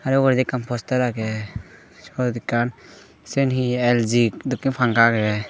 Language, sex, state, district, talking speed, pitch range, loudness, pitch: Chakma, female, Tripura, Dhalai, 155 wpm, 115-130 Hz, -21 LUFS, 120 Hz